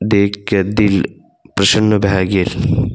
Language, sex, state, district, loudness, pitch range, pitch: Maithili, male, Bihar, Saharsa, -15 LUFS, 100-110 Hz, 100 Hz